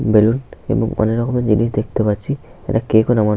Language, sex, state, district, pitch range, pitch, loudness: Bengali, male, West Bengal, Paschim Medinipur, 105-120 Hz, 110 Hz, -18 LUFS